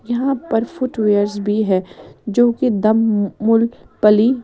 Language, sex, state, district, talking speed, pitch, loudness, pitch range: Hindi, female, Odisha, Sambalpur, 135 wpm, 225 Hz, -17 LUFS, 210-240 Hz